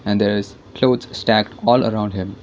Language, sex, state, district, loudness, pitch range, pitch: English, female, Karnataka, Bangalore, -18 LUFS, 100-120 Hz, 105 Hz